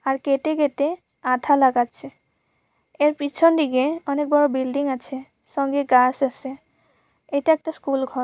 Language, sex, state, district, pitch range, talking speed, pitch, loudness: Bengali, female, West Bengal, Purulia, 265-295 Hz, 140 wpm, 280 Hz, -21 LUFS